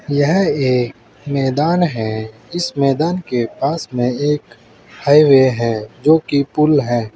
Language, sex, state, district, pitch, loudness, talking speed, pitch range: Hindi, male, Uttar Pradesh, Saharanpur, 140 Hz, -16 LUFS, 125 wpm, 120-150 Hz